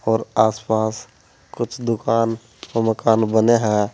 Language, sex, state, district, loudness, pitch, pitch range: Hindi, male, Uttar Pradesh, Saharanpur, -19 LUFS, 110 Hz, 110-115 Hz